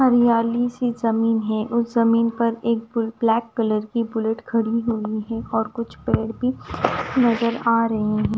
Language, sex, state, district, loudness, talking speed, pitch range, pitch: Hindi, female, Punjab, Kapurthala, -21 LUFS, 165 wpm, 225-235 Hz, 230 Hz